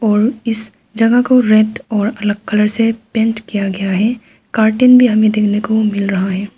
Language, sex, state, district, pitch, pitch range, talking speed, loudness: Hindi, female, Arunachal Pradesh, Papum Pare, 215 Hz, 210-225 Hz, 190 wpm, -14 LUFS